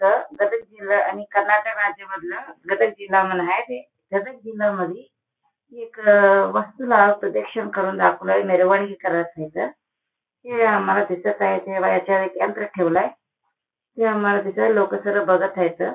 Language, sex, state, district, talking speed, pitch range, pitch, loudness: Marathi, female, Maharashtra, Solapur, 145 wpm, 185-210 Hz, 200 Hz, -20 LUFS